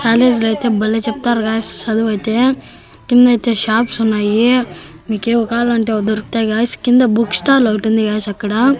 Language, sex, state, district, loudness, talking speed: Telugu, male, Andhra Pradesh, Annamaya, -14 LUFS, 155 wpm